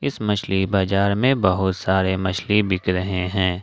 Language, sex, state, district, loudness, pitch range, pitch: Hindi, male, Jharkhand, Ranchi, -20 LUFS, 95-100 Hz, 95 Hz